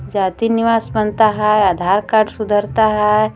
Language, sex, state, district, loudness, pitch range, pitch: Hindi, female, Jharkhand, Garhwa, -15 LUFS, 205-220 Hz, 215 Hz